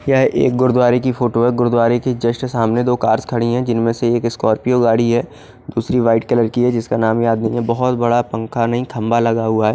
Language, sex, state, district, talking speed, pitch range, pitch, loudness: Hindi, male, Odisha, Khordha, 245 wpm, 115-125 Hz, 120 Hz, -16 LUFS